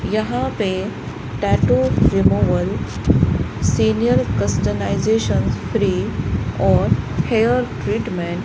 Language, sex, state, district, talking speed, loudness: Hindi, female, Rajasthan, Bikaner, 80 wpm, -19 LUFS